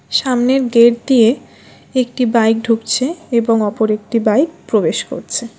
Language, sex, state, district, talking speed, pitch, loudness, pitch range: Bengali, female, West Bengal, Alipurduar, 130 wpm, 235 Hz, -15 LUFS, 225-255 Hz